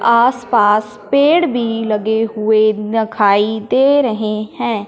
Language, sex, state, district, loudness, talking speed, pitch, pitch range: Hindi, male, Punjab, Fazilka, -14 LUFS, 110 wpm, 220 Hz, 215-240 Hz